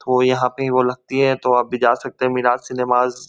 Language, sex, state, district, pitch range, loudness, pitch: Hindi, male, West Bengal, Kolkata, 125-130 Hz, -18 LUFS, 125 Hz